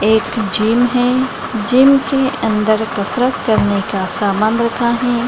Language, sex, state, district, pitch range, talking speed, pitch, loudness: Hindi, female, Bihar, Gaya, 215-245 Hz, 135 wpm, 230 Hz, -15 LUFS